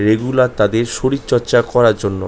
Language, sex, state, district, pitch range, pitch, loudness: Bengali, male, West Bengal, North 24 Parganas, 105-125 Hz, 115 Hz, -15 LUFS